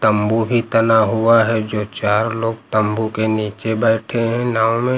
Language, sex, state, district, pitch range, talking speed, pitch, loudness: Hindi, male, Uttar Pradesh, Lucknow, 110-115 Hz, 180 wpm, 110 Hz, -17 LUFS